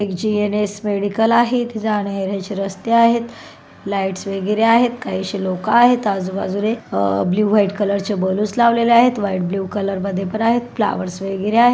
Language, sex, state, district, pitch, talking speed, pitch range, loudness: Marathi, female, Maharashtra, Solapur, 205 Hz, 165 wpm, 195-230 Hz, -18 LUFS